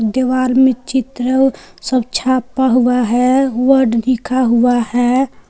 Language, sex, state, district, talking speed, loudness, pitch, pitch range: Hindi, female, Jharkhand, Palamu, 120 wpm, -14 LUFS, 255 Hz, 245-260 Hz